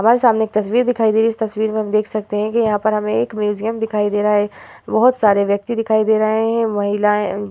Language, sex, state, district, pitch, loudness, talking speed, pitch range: Hindi, female, Uttar Pradesh, Hamirpur, 215 Hz, -17 LUFS, 265 wpm, 210-225 Hz